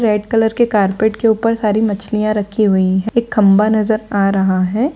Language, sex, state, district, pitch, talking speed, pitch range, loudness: Hindi, female, Bihar, Jahanabad, 215 Hz, 205 wpm, 200-225 Hz, -15 LUFS